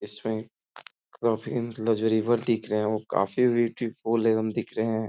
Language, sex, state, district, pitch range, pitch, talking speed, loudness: Hindi, male, Uttar Pradesh, Etah, 110-115 Hz, 110 Hz, 155 wpm, -26 LUFS